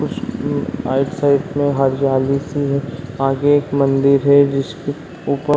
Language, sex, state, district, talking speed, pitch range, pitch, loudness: Hindi, male, Bihar, Saran, 160 wpm, 135-140 Hz, 140 Hz, -17 LUFS